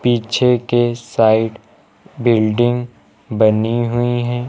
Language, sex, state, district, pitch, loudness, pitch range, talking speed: Hindi, male, Uttar Pradesh, Lucknow, 120 Hz, -16 LUFS, 110-120 Hz, 95 wpm